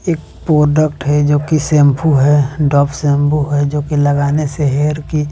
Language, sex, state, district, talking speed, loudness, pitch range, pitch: Hindi, male, Bihar, West Champaran, 180 wpm, -13 LUFS, 145-150 Hz, 145 Hz